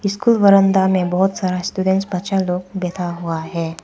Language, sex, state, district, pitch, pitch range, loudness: Hindi, female, Arunachal Pradesh, Papum Pare, 185 Hz, 180-195 Hz, -18 LUFS